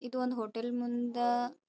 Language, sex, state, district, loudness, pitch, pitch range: Kannada, female, Karnataka, Dharwad, -34 LUFS, 240 Hz, 240-245 Hz